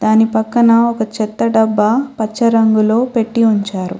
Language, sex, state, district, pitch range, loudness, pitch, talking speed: Telugu, female, Telangana, Hyderabad, 215-230 Hz, -14 LUFS, 220 Hz, 135 wpm